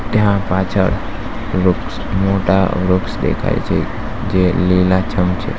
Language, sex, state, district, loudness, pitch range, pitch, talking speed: Gujarati, male, Gujarat, Valsad, -17 LUFS, 90-110 Hz, 95 Hz, 105 wpm